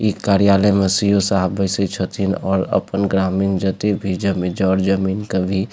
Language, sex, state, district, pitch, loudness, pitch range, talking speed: Maithili, male, Bihar, Supaul, 95 Hz, -18 LUFS, 95-100 Hz, 180 wpm